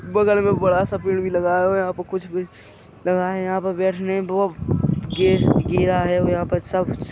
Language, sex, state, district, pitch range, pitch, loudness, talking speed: Hindi, male, Chhattisgarh, Rajnandgaon, 180-190 Hz, 185 Hz, -20 LUFS, 235 wpm